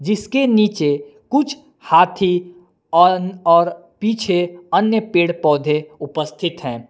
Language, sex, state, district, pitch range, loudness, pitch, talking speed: Hindi, male, Jharkhand, Palamu, 155-210 Hz, -17 LUFS, 175 Hz, 105 wpm